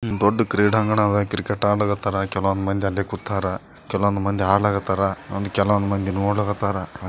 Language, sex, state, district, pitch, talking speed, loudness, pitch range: Kannada, male, Karnataka, Bijapur, 100 Hz, 145 wpm, -22 LUFS, 95-105 Hz